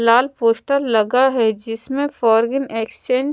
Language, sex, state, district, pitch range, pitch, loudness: Hindi, female, Bihar, Patna, 225-270 Hz, 235 Hz, -18 LUFS